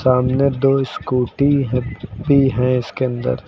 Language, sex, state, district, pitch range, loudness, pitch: Hindi, male, Uttar Pradesh, Lucknow, 125-135 Hz, -17 LUFS, 130 Hz